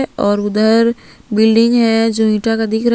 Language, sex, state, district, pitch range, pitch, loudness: Hindi, female, Jharkhand, Palamu, 220-230 Hz, 225 Hz, -14 LUFS